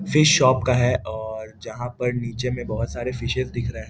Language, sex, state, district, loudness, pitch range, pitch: Hindi, male, Bihar, East Champaran, -22 LUFS, 110-125 Hz, 120 Hz